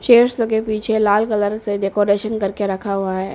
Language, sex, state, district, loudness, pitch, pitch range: Hindi, female, Arunachal Pradesh, Papum Pare, -18 LUFS, 210 Hz, 200-220 Hz